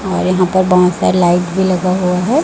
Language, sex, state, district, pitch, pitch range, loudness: Hindi, female, Chhattisgarh, Raipur, 185 Hz, 180-185 Hz, -13 LUFS